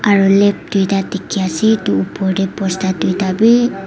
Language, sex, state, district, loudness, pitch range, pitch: Nagamese, female, Nagaland, Dimapur, -15 LUFS, 190-205 Hz, 195 Hz